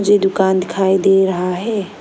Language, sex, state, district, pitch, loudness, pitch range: Hindi, female, Arunachal Pradesh, Lower Dibang Valley, 190 Hz, -15 LUFS, 190-195 Hz